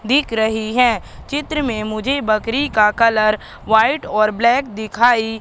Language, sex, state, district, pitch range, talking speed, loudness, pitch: Hindi, female, Madhya Pradesh, Katni, 215-255 Hz, 145 wpm, -17 LUFS, 225 Hz